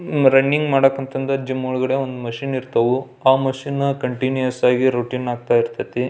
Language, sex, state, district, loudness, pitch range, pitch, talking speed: Kannada, male, Karnataka, Belgaum, -19 LUFS, 125-135 Hz, 130 Hz, 145 wpm